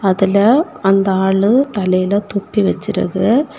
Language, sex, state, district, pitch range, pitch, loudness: Tamil, female, Tamil Nadu, Kanyakumari, 190-230 Hz, 200 Hz, -15 LUFS